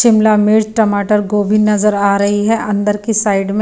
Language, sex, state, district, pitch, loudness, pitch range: Hindi, female, Himachal Pradesh, Shimla, 210 Hz, -13 LUFS, 205-215 Hz